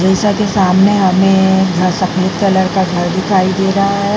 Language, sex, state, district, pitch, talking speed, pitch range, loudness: Hindi, female, Bihar, Vaishali, 190 Hz, 170 wpm, 185-195 Hz, -12 LUFS